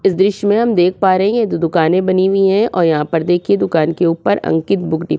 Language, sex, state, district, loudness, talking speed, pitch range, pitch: Hindi, female, Uttarakhand, Tehri Garhwal, -14 LUFS, 290 wpm, 165-195 Hz, 180 Hz